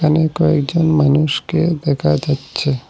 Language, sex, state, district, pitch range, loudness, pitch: Bengali, male, Assam, Hailakandi, 140-160 Hz, -16 LUFS, 150 Hz